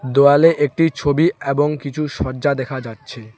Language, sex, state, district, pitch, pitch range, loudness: Bengali, male, West Bengal, Alipurduar, 140 Hz, 130-150 Hz, -17 LUFS